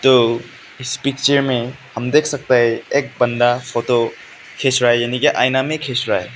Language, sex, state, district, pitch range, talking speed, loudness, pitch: Hindi, male, Meghalaya, West Garo Hills, 120-135 Hz, 200 wpm, -17 LUFS, 125 Hz